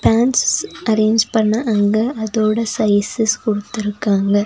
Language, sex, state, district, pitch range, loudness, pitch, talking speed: Tamil, female, Tamil Nadu, Nilgiris, 210-230 Hz, -17 LUFS, 220 Hz, 95 wpm